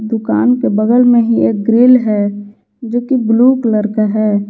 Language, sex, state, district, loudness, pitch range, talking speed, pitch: Hindi, female, Jharkhand, Garhwa, -12 LUFS, 215-245 Hz, 185 wpm, 225 Hz